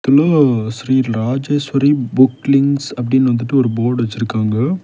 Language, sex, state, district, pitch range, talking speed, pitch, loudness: Tamil, male, Tamil Nadu, Kanyakumari, 120-140 Hz, 110 wpm, 130 Hz, -15 LUFS